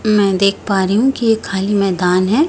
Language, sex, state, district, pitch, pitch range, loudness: Hindi, female, Chhattisgarh, Raipur, 200 Hz, 195-220 Hz, -15 LUFS